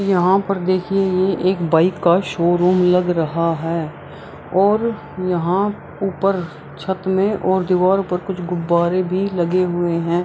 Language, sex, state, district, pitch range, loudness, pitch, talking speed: Hindi, female, Bihar, Araria, 170-190 Hz, -18 LUFS, 180 Hz, 145 wpm